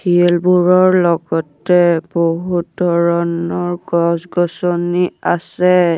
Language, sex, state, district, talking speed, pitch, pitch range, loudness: Assamese, male, Assam, Sonitpur, 60 wpm, 175 Hz, 170-180 Hz, -15 LUFS